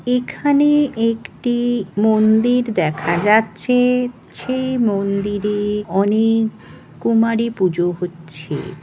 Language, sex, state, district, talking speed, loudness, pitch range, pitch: Bengali, female, West Bengal, North 24 Parganas, 75 wpm, -18 LUFS, 195-245 Hz, 220 Hz